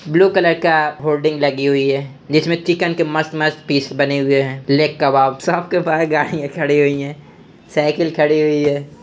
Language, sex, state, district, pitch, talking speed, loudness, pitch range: Hindi, male, Uttar Pradesh, Hamirpur, 150 Hz, 185 wpm, -16 LUFS, 140-160 Hz